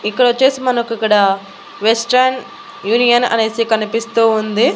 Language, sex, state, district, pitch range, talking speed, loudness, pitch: Telugu, female, Andhra Pradesh, Annamaya, 215-245 Hz, 115 wpm, -14 LUFS, 230 Hz